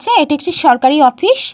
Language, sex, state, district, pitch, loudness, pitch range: Bengali, female, Jharkhand, Jamtara, 345 Hz, -11 LUFS, 275-410 Hz